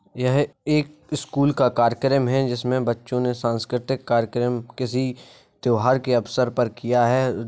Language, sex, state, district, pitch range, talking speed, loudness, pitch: Hindi, male, Uttar Pradesh, Jalaun, 120-135 Hz, 145 wpm, -22 LUFS, 125 Hz